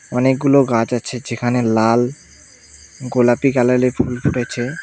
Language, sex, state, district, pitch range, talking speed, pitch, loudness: Bengali, male, West Bengal, Cooch Behar, 120-130 Hz, 110 wpm, 125 Hz, -17 LUFS